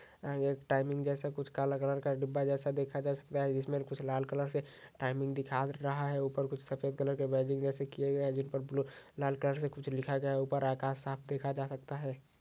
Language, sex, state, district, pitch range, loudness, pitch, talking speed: Hindi, male, Maharashtra, Nagpur, 135-140 Hz, -36 LUFS, 140 Hz, 235 wpm